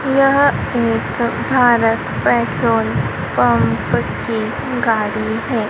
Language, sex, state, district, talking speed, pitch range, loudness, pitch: Hindi, female, Madhya Pradesh, Dhar, 85 wpm, 220-265 Hz, -16 LUFS, 230 Hz